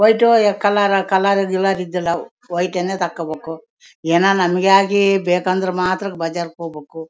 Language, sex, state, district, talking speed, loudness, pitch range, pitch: Kannada, female, Karnataka, Bellary, 135 wpm, -17 LUFS, 170-195 Hz, 185 Hz